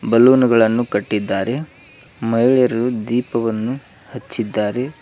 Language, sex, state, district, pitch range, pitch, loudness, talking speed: Kannada, male, Karnataka, Koppal, 110-125 Hz, 115 Hz, -17 LUFS, 70 wpm